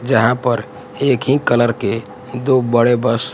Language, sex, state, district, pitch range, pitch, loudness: Hindi, male, Gujarat, Gandhinagar, 115-130 Hz, 120 Hz, -16 LUFS